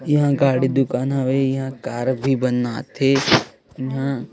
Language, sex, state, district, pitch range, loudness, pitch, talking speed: Hindi, female, Chhattisgarh, Raipur, 130-135 Hz, -20 LUFS, 135 Hz, 140 wpm